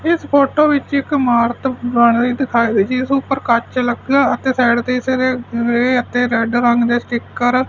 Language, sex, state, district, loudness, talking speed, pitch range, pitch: Punjabi, male, Punjab, Fazilka, -16 LUFS, 165 wpm, 235-265 Hz, 245 Hz